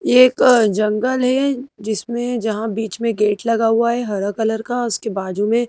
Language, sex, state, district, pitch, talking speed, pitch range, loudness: Hindi, female, Madhya Pradesh, Bhopal, 225 Hz, 190 wpm, 215-245 Hz, -18 LUFS